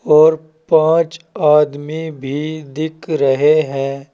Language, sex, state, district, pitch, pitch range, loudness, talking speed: Hindi, male, Uttar Pradesh, Saharanpur, 155 Hz, 145-160 Hz, -16 LUFS, 100 wpm